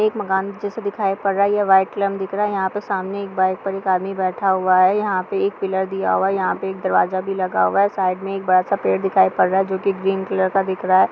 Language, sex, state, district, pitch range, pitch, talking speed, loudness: Hindi, female, Bihar, Kishanganj, 185-195 Hz, 195 Hz, 225 wpm, -19 LUFS